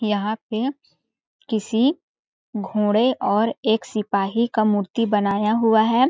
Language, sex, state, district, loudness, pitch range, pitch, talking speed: Hindi, female, Chhattisgarh, Balrampur, -21 LUFS, 210-230 Hz, 220 Hz, 120 wpm